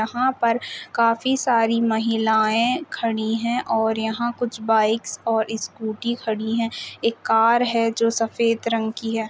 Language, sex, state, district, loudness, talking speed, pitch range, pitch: Hindi, female, Uttar Pradesh, Budaun, -22 LUFS, 150 wpm, 220-235 Hz, 230 Hz